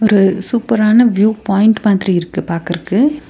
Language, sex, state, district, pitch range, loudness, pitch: Tamil, female, Tamil Nadu, Nilgiris, 190-225 Hz, -13 LUFS, 210 Hz